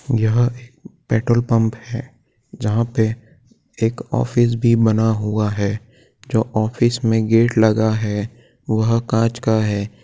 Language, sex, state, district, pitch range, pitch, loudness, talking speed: Hindi, male, Chhattisgarh, Korba, 110-120 Hz, 115 Hz, -19 LUFS, 135 wpm